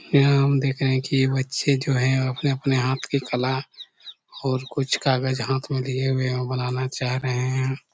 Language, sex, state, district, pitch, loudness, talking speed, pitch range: Hindi, male, Chhattisgarh, Korba, 130 Hz, -23 LUFS, 220 wpm, 130-135 Hz